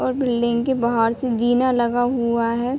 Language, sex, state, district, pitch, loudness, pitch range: Hindi, female, Uttar Pradesh, Ghazipur, 240 Hz, -20 LUFS, 235-255 Hz